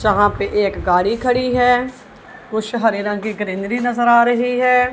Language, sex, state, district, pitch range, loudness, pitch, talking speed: Hindi, female, Punjab, Kapurthala, 205-245 Hz, -17 LUFS, 235 Hz, 185 wpm